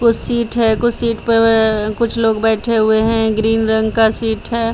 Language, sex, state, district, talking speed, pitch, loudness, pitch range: Hindi, female, Bihar, Patna, 200 wpm, 225 Hz, -14 LUFS, 220-230 Hz